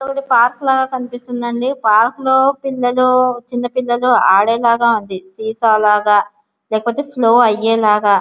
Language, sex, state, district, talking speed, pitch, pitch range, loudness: Telugu, female, Andhra Pradesh, Visakhapatnam, 145 wpm, 240 Hz, 215-255 Hz, -14 LUFS